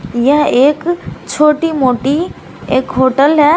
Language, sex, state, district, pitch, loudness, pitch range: Hindi, female, Bihar, Katihar, 290 Hz, -12 LUFS, 260-305 Hz